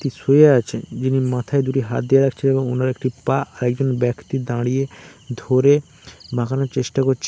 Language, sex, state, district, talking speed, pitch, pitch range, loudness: Bengali, male, West Bengal, Paschim Medinipur, 155 wpm, 130 Hz, 125-135 Hz, -19 LUFS